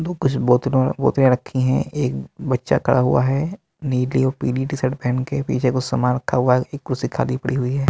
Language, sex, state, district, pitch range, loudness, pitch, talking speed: Hindi, male, Bihar, Katihar, 125-135 Hz, -20 LUFS, 130 Hz, 220 wpm